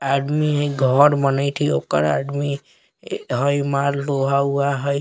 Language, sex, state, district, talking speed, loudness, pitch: Bajjika, male, Bihar, Vaishali, 155 wpm, -19 LUFS, 140 Hz